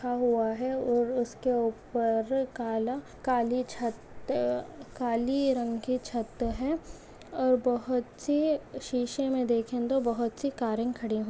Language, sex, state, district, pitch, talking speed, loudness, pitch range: Hindi, female, Goa, North and South Goa, 245 Hz, 145 wpm, -30 LUFS, 230-255 Hz